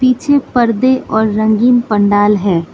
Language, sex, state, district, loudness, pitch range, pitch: Hindi, female, Manipur, Imphal West, -12 LUFS, 205-250 Hz, 220 Hz